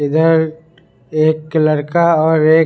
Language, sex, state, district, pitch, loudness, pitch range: Hindi, male, Bihar, Sitamarhi, 160 Hz, -14 LUFS, 155-160 Hz